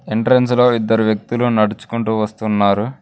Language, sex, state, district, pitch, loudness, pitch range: Telugu, male, Telangana, Mahabubabad, 110 Hz, -16 LUFS, 110-120 Hz